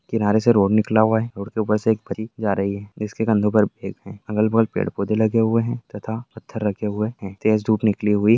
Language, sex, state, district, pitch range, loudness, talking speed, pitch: Hindi, male, Bihar, Jamui, 105-110 Hz, -21 LUFS, 245 wpm, 110 Hz